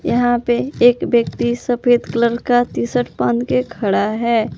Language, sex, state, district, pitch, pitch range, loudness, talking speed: Hindi, female, Jharkhand, Palamu, 240 Hz, 230-245 Hz, -17 LUFS, 170 wpm